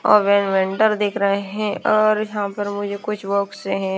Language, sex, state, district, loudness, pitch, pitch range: Hindi, female, Himachal Pradesh, Shimla, -20 LUFS, 200 Hz, 200-210 Hz